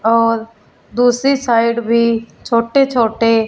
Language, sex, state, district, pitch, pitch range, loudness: Hindi, female, Punjab, Fazilka, 230 Hz, 230-240 Hz, -15 LUFS